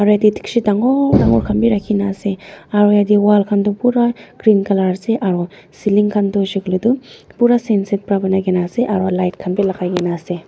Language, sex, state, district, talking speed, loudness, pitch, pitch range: Nagamese, female, Nagaland, Dimapur, 185 wpm, -16 LUFS, 200 Hz, 190-210 Hz